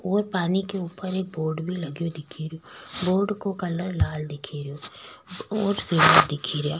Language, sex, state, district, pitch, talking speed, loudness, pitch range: Rajasthani, female, Rajasthan, Nagaur, 175 Hz, 140 wpm, -25 LUFS, 155-190 Hz